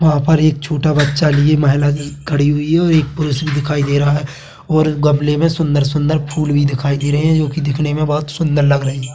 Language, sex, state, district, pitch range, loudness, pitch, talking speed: Hindi, male, Chhattisgarh, Bilaspur, 145-155 Hz, -15 LUFS, 150 Hz, 255 wpm